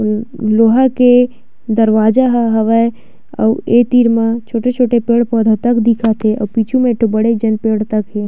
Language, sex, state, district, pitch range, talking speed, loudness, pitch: Chhattisgarhi, female, Chhattisgarh, Sukma, 220-240 Hz, 175 wpm, -13 LUFS, 230 Hz